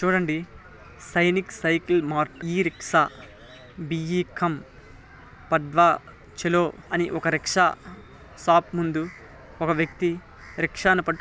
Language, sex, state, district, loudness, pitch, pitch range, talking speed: Telugu, male, Telangana, Nalgonda, -24 LUFS, 170 Hz, 155-175 Hz, 110 wpm